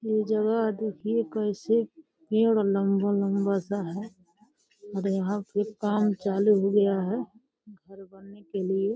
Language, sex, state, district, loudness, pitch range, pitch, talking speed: Hindi, female, Uttar Pradesh, Deoria, -27 LUFS, 195-220 Hz, 205 Hz, 140 wpm